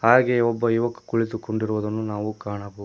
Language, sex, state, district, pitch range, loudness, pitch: Kannada, male, Karnataka, Koppal, 105-115 Hz, -24 LUFS, 110 Hz